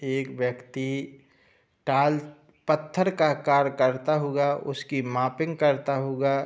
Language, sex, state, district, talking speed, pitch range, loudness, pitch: Hindi, male, Uttar Pradesh, Budaun, 120 wpm, 135-150 Hz, -26 LUFS, 140 Hz